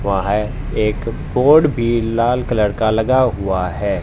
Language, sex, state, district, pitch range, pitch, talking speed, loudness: Hindi, male, Haryana, Jhajjar, 100-125 Hz, 110 Hz, 150 wpm, -17 LUFS